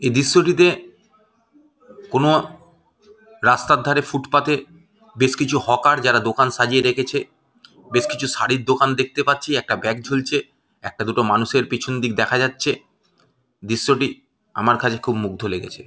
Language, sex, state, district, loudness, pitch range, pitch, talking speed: Bengali, male, West Bengal, Malda, -19 LUFS, 120-150 Hz, 135 Hz, 135 wpm